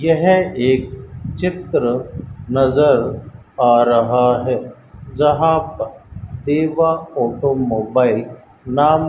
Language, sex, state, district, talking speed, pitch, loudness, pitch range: Hindi, male, Rajasthan, Bikaner, 85 wpm, 130 Hz, -17 LUFS, 120-150 Hz